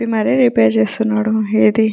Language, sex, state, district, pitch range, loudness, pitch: Telugu, female, Telangana, Nalgonda, 210-225 Hz, -15 LUFS, 220 Hz